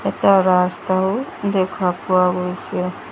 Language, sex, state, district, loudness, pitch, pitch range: Assamese, female, Assam, Sonitpur, -19 LUFS, 185 Hz, 180-195 Hz